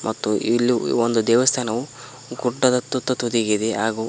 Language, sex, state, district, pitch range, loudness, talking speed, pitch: Kannada, male, Karnataka, Koppal, 115-125 Hz, -20 LUFS, 120 wpm, 120 Hz